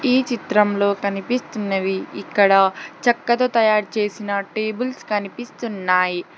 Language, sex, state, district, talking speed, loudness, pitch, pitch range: Telugu, female, Telangana, Hyderabad, 85 wpm, -20 LUFS, 210 Hz, 200-240 Hz